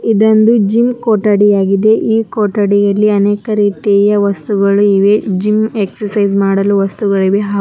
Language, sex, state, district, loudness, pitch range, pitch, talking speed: Kannada, male, Karnataka, Dharwad, -12 LUFS, 200-215 Hz, 205 Hz, 125 wpm